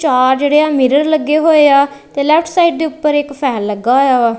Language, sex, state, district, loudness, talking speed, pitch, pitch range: Punjabi, female, Punjab, Kapurthala, -12 LUFS, 230 wpm, 290 Hz, 265-310 Hz